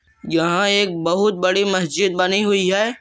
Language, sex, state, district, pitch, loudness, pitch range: Hindi, male, Andhra Pradesh, Visakhapatnam, 190 Hz, -18 LUFS, 185-205 Hz